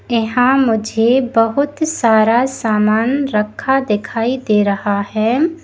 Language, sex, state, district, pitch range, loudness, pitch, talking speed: Hindi, female, Uttar Pradesh, Lalitpur, 215-265 Hz, -15 LUFS, 230 Hz, 105 wpm